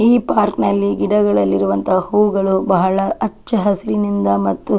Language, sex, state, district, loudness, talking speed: Kannada, female, Karnataka, Chamarajanagar, -16 LUFS, 135 wpm